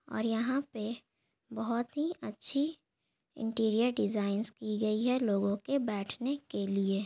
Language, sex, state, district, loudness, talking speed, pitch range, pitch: Hindi, female, Bihar, Gaya, -33 LUFS, 135 wpm, 210-255 Hz, 225 Hz